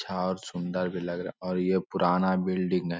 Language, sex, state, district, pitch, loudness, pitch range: Hindi, male, Bihar, Lakhisarai, 90 Hz, -29 LUFS, 90-95 Hz